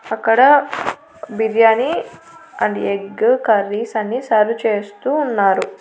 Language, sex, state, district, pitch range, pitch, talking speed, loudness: Telugu, female, Andhra Pradesh, Annamaya, 210-270 Hz, 225 Hz, 95 wpm, -16 LUFS